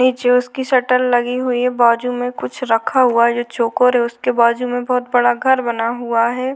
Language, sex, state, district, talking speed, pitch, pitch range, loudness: Hindi, female, Uttarakhand, Tehri Garhwal, 220 wpm, 245 Hz, 235-250 Hz, -16 LUFS